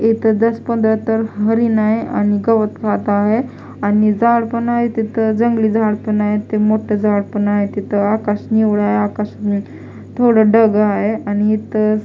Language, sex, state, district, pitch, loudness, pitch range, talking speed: Marathi, female, Maharashtra, Mumbai Suburban, 215 Hz, -16 LUFS, 210-225 Hz, 180 wpm